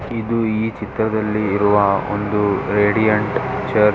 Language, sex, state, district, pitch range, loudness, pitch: Kannada, male, Karnataka, Dharwad, 105-110 Hz, -18 LUFS, 105 Hz